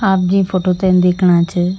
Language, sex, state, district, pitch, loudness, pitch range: Garhwali, female, Uttarakhand, Tehri Garhwal, 185 Hz, -14 LUFS, 180-190 Hz